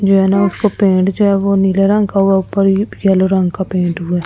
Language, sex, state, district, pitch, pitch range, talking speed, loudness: Hindi, female, Delhi, New Delhi, 195 Hz, 190-200 Hz, 280 wpm, -13 LUFS